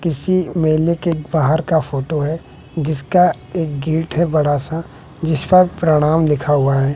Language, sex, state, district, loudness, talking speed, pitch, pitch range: Hindi, male, Bihar, West Champaran, -17 LUFS, 165 wpm, 155 Hz, 150-165 Hz